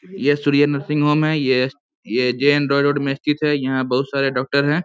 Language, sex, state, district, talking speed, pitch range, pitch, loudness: Hindi, male, Jharkhand, Sahebganj, 210 wpm, 135-145 Hz, 140 Hz, -19 LUFS